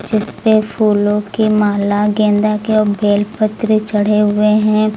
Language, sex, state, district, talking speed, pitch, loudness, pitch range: Hindi, female, Uttar Pradesh, Lucknow, 145 wpm, 210 Hz, -14 LUFS, 210-215 Hz